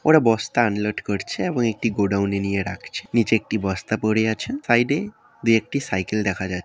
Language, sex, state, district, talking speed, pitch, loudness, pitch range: Bengali, male, West Bengal, Dakshin Dinajpur, 170 wpm, 110 Hz, -22 LUFS, 100-120 Hz